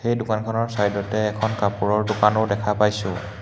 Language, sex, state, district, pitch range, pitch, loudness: Assamese, male, Assam, Hailakandi, 105-110 Hz, 105 Hz, -22 LUFS